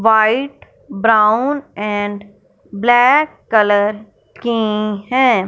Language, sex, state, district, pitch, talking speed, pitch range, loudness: Hindi, male, Punjab, Fazilka, 220 Hz, 75 wpm, 210-245 Hz, -15 LUFS